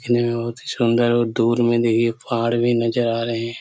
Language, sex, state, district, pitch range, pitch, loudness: Hindi, male, Chhattisgarh, Korba, 115-120 Hz, 115 Hz, -20 LUFS